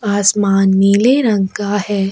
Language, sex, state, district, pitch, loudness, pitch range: Hindi, female, Chhattisgarh, Sukma, 205 Hz, -13 LUFS, 195-205 Hz